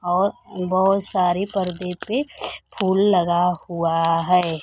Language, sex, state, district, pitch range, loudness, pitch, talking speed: Hindi, female, Bihar, Kaimur, 175-195 Hz, -21 LUFS, 180 Hz, 115 wpm